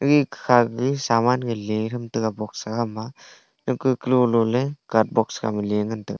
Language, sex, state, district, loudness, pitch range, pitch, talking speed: Wancho, male, Arunachal Pradesh, Longding, -22 LUFS, 110-130 Hz, 115 Hz, 165 wpm